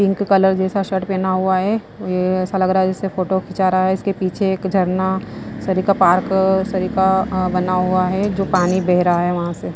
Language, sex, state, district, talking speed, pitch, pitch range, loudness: Hindi, female, Himachal Pradesh, Shimla, 220 wpm, 190 Hz, 185-190 Hz, -18 LUFS